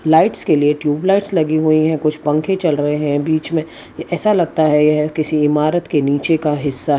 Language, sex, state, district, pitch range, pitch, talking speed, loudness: Hindi, female, Gujarat, Valsad, 150-160 Hz, 155 Hz, 225 wpm, -16 LUFS